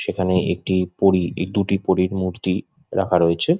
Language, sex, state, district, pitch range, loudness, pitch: Bengali, male, West Bengal, Jhargram, 90-95 Hz, -21 LUFS, 95 Hz